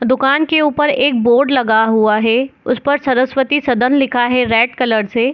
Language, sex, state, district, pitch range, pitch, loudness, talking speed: Hindi, female, Bihar, Gopalganj, 240-275 Hz, 255 Hz, -14 LUFS, 180 wpm